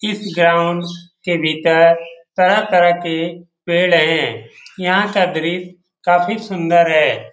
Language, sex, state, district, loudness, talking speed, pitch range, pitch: Hindi, male, Bihar, Jamui, -15 LUFS, 115 wpm, 165-180 Hz, 175 Hz